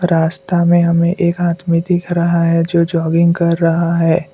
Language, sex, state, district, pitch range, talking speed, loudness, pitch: Hindi, male, Assam, Kamrup Metropolitan, 165-175 Hz, 180 wpm, -14 LUFS, 170 Hz